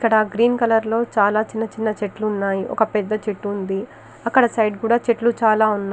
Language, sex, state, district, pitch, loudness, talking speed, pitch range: Telugu, female, Telangana, Karimnagar, 220 Hz, -20 LUFS, 180 wpm, 210-230 Hz